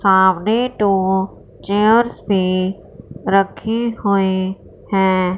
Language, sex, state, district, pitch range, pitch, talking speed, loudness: Hindi, female, Punjab, Fazilka, 190-210 Hz, 195 Hz, 80 wpm, -17 LUFS